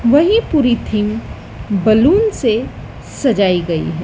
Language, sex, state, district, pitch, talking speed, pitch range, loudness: Hindi, female, Madhya Pradesh, Dhar, 230 Hz, 120 wpm, 200-295 Hz, -15 LUFS